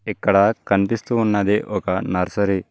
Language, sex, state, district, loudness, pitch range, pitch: Telugu, male, Telangana, Mahabubabad, -20 LUFS, 100-105 Hz, 100 Hz